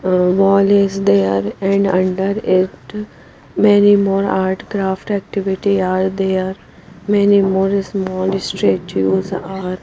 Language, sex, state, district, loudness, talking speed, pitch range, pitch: English, female, Punjab, Pathankot, -16 LUFS, 120 wpm, 185-200 Hz, 190 Hz